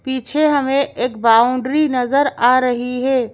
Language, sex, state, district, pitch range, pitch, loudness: Hindi, female, Madhya Pradesh, Bhopal, 245-275 Hz, 255 Hz, -16 LUFS